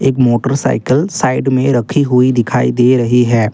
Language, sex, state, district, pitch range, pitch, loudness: Hindi, male, Assam, Kamrup Metropolitan, 120-135 Hz, 125 Hz, -13 LUFS